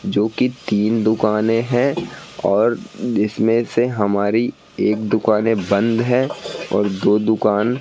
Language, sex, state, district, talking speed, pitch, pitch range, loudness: Hindi, male, Madhya Pradesh, Katni, 125 wpm, 110 Hz, 105-115 Hz, -18 LUFS